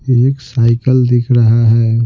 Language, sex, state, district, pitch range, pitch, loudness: Hindi, male, Bihar, Patna, 115-130 Hz, 120 Hz, -12 LUFS